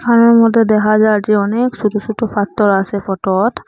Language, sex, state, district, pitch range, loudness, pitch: Bengali, female, Assam, Hailakandi, 205-230 Hz, -13 LUFS, 215 Hz